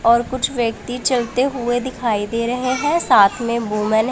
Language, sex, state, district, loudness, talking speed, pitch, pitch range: Hindi, female, Punjab, Pathankot, -18 LUFS, 190 wpm, 240 Hz, 225-255 Hz